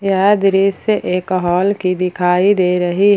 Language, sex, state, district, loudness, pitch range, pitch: Hindi, female, Jharkhand, Palamu, -15 LUFS, 180-200 Hz, 190 Hz